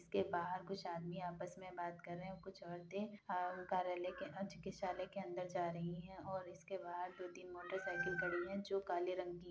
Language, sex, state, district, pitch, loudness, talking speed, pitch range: Hindi, female, Uttar Pradesh, Budaun, 180 Hz, -45 LUFS, 200 wpm, 175-190 Hz